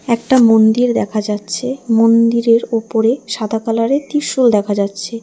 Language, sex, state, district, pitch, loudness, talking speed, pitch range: Bengali, female, West Bengal, Alipurduar, 230 Hz, -14 LUFS, 125 wpm, 220-245 Hz